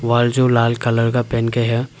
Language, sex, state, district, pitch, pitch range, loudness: Hindi, male, Arunachal Pradesh, Papum Pare, 120 Hz, 115-120 Hz, -17 LUFS